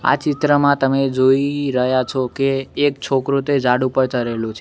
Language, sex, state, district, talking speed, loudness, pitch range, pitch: Gujarati, male, Gujarat, Gandhinagar, 180 wpm, -18 LUFS, 130-140 Hz, 135 Hz